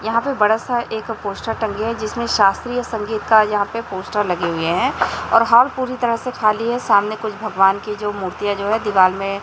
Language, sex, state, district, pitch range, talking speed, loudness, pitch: Hindi, male, Chhattisgarh, Raipur, 200-230 Hz, 225 wpm, -18 LUFS, 215 Hz